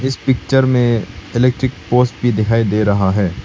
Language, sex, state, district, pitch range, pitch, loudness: Hindi, male, Arunachal Pradesh, Lower Dibang Valley, 100-125 Hz, 120 Hz, -15 LUFS